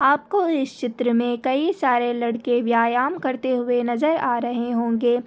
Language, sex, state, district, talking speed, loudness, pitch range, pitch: Hindi, female, Maharashtra, Nagpur, 160 wpm, -21 LUFS, 240-270 Hz, 245 Hz